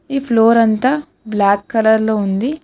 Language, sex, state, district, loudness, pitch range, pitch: Telugu, female, Telangana, Hyderabad, -15 LUFS, 215-265 Hz, 225 Hz